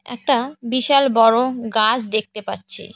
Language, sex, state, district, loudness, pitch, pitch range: Bengali, female, West Bengal, Cooch Behar, -17 LUFS, 240 Hz, 225-255 Hz